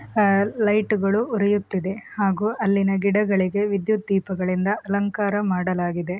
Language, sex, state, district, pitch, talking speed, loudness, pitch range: Kannada, female, Karnataka, Mysore, 200 Hz, 105 wpm, -22 LUFS, 190-210 Hz